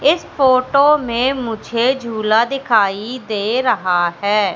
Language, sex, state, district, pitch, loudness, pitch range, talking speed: Hindi, female, Madhya Pradesh, Katni, 235 Hz, -16 LUFS, 210-260 Hz, 120 wpm